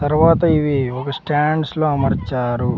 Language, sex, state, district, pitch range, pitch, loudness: Telugu, male, Andhra Pradesh, Sri Satya Sai, 135-155 Hz, 145 Hz, -18 LUFS